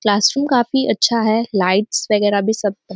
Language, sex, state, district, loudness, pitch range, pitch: Hindi, female, Uttar Pradesh, Deoria, -16 LUFS, 205-235 Hz, 215 Hz